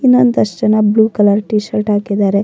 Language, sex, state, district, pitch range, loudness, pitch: Kannada, female, Karnataka, Mysore, 205-220 Hz, -13 LUFS, 210 Hz